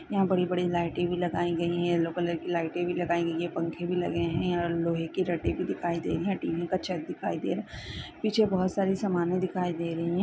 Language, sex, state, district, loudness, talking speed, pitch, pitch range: Hindi, female, Chhattisgarh, Bilaspur, -29 LUFS, 250 wpm, 175 Hz, 170-180 Hz